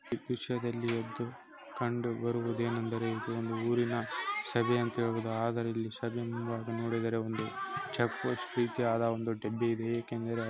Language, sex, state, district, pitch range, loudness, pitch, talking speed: Kannada, male, Karnataka, Chamarajanagar, 115-120 Hz, -34 LUFS, 115 Hz, 125 wpm